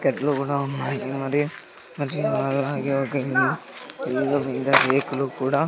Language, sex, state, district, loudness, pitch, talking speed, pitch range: Telugu, male, Andhra Pradesh, Sri Satya Sai, -24 LUFS, 140 Hz, 115 wpm, 135-145 Hz